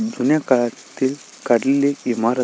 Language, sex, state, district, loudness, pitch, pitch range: Marathi, male, Maharashtra, Sindhudurg, -19 LUFS, 130 Hz, 120-140 Hz